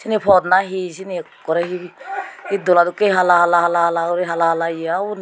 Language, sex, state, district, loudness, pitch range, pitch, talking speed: Chakma, female, Tripura, Unakoti, -17 LUFS, 170-195 Hz, 180 Hz, 160 wpm